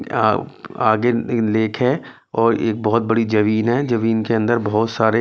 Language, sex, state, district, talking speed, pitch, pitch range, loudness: Hindi, male, Delhi, New Delhi, 185 wpm, 115 Hz, 110-115 Hz, -18 LUFS